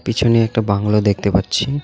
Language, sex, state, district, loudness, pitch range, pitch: Bengali, male, West Bengal, Alipurduar, -16 LUFS, 100-115 Hz, 105 Hz